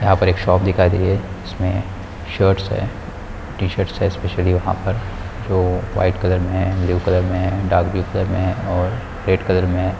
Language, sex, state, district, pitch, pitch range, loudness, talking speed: Hindi, male, Bihar, Kishanganj, 95 Hz, 90-95 Hz, -19 LUFS, 210 wpm